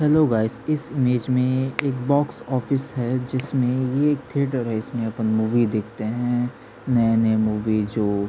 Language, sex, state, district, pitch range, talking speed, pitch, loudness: Hindi, male, Chhattisgarh, Sukma, 110-135 Hz, 145 wpm, 125 Hz, -22 LUFS